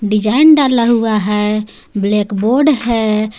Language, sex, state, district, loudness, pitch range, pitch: Hindi, female, Jharkhand, Garhwa, -13 LUFS, 210-235 Hz, 215 Hz